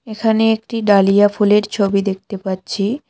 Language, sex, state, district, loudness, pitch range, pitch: Bengali, female, West Bengal, Cooch Behar, -16 LUFS, 200-220 Hz, 205 Hz